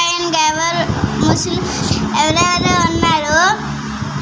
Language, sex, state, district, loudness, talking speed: Telugu, male, Andhra Pradesh, Manyam, -15 LUFS, 55 wpm